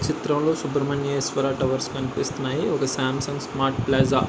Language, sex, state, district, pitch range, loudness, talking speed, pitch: Telugu, male, Andhra Pradesh, Anantapur, 135-140 Hz, -24 LUFS, 155 wpm, 135 Hz